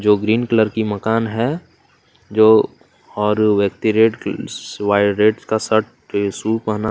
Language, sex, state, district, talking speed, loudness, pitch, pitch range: Hindi, male, Chhattisgarh, Kabirdham, 175 wpm, -17 LUFS, 110 Hz, 105-110 Hz